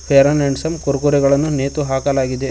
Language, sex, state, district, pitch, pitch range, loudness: Kannada, male, Karnataka, Koppal, 140 Hz, 135-145 Hz, -16 LUFS